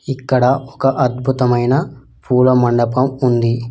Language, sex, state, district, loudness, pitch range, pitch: Telugu, male, Telangana, Mahabubabad, -15 LUFS, 125-135 Hz, 130 Hz